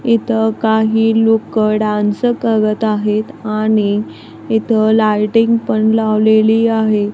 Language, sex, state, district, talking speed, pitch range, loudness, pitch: Marathi, female, Maharashtra, Gondia, 100 wpm, 215-225 Hz, -14 LUFS, 220 Hz